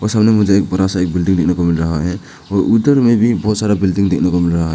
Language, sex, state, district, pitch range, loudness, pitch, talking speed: Hindi, male, Arunachal Pradesh, Papum Pare, 90-105 Hz, -14 LUFS, 95 Hz, 330 wpm